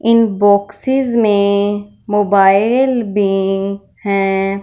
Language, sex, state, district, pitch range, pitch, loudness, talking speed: Hindi, female, Punjab, Fazilka, 195-220 Hz, 205 Hz, -14 LUFS, 80 wpm